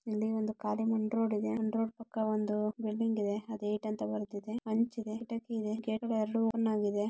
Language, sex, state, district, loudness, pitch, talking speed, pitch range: Kannada, female, Karnataka, Shimoga, -34 LUFS, 220 Hz, 75 wpm, 215-225 Hz